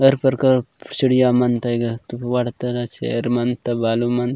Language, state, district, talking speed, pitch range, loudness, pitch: Gondi, Chhattisgarh, Sukma, 180 wpm, 120-125 Hz, -20 LUFS, 120 Hz